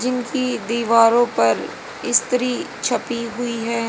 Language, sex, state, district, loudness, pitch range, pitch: Hindi, female, Haryana, Jhajjar, -19 LUFS, 230-250 Hz, 240 Hz